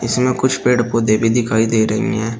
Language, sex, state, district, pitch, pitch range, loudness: Hindi, male, Uttar Pradesh, Shamli, 115 Hz, 110-125 Hz, -16 LUFS